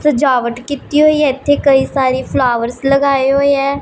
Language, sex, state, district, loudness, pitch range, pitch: Hindi, male, Punjab, Pathankot, -13 LUFS, 260-285 Hz, 275 Hz